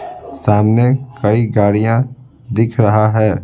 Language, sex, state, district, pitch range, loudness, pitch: Hindi, male, Bihar, Patna, 110-130 Hz, -14 LUFS, 115 Hz